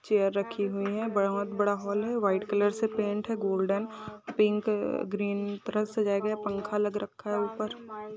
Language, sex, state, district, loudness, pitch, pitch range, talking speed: Hindi, female, Andhra Pradesh, Chittoor, -30 LUFS, 210 Hz, 200-215 Hz, 190 wpm